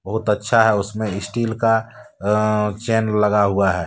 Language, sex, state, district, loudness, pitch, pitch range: Hindi, male, Jharkhand, Deoghar, -19 LUFS, 105 Hz, 105-110 Hz